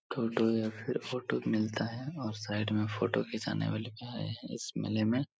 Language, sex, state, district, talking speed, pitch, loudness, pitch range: Hindi, male, Bihar, Supaul, 200 wpm, 110 Hz, -34 LUFS, 110-120 Hz